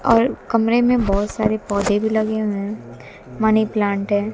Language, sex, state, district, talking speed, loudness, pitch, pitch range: Hindi, female, Haryana, Jhajjar, 180 wpm, -19 LUFS, 215 Hz, 205-225 Hz